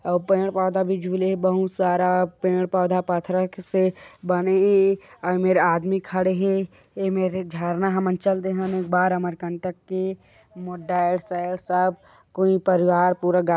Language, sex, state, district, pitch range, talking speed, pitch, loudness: Chhattisgarhi, male, Chhattisgarh, Korba, 180-190 Hz, 160 wpm, 185 Hz, -22 LUFS